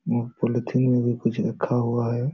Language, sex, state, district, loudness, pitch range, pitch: Hindi, male, Jharkhand, Sahebganj, -24 LUFS, 120-125 Hz, 120 Hz